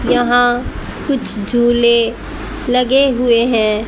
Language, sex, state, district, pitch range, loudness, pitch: Hindi, female, Haryana, Rohtak, 235-250 Hz, -14 LUFS, 240 Hz